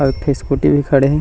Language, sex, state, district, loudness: Chhattisgarhi, male, Chhattisgarh, Rajnandgaon, -15 LUFS